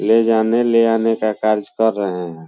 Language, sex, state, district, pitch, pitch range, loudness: Hindi, male, Bihar, Muzaffarpur, 110 Hz, 105-115 Hz, -17 LUFS